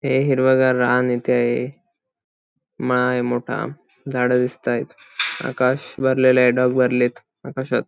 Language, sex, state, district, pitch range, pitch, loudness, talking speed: Marathi, male, Maharashtra, Sindhudurg, 125-130 Hz, 125 Hz, -19 LUFS, 130 wpm